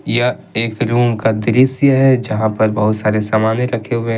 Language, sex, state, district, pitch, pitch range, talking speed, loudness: Hindi, male, Jharkhand, Ranchi, 115 Hz, 110-125 Hz, 200 wpm, -15 LUFS